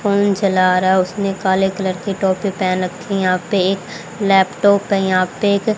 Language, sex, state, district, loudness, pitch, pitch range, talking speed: Hindi, female, Haryana, Rohtak, -17 LUFS, 195 Hz, 185-200 Hz, 210 wpm